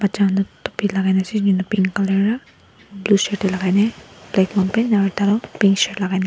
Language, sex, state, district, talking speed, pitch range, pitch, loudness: Nagamese, female, Nagaland, Dimapur, 180 wpm, 190-205 Hz, 195 Hz, -19 LUFS